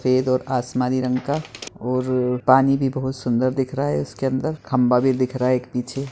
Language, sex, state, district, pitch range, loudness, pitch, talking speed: Hindi, male, Bihar, Madhepura, 125-135 Hz, -21 LUFS, 130 Hz, 215 wpm